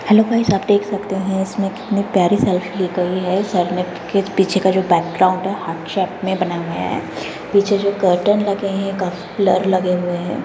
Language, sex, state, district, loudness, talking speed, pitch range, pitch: Hindi, female, Bihar, Madhepura, -18 LUFS, 205 wpm, 180-200 Hz, 190 Hz